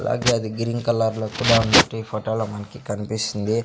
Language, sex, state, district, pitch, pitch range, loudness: Telugu, male, Andhra Pradesh, Sri Satya Sai, 110 Hz, 105-115 Hz, -21 LUFS